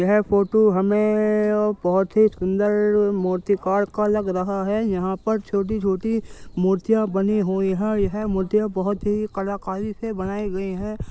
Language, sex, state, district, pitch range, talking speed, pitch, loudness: Hindi, male, Uttar Pradesh, Jyotiba Phule Nagar, 195-210 Hz, 150 wpm, 205 Hz, -22 LUFS